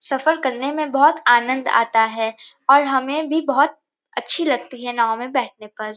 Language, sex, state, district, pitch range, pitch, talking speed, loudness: Hindi, female, Uttar Pradesh, Varanasi, 230-290 Hz, 265 Hz, 180 wpm, -18 LUFS